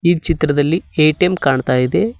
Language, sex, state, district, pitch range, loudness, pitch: Kannada, male, Karnataka, Koppal, 145-175 Hz, -15 LUFS, 155 Hz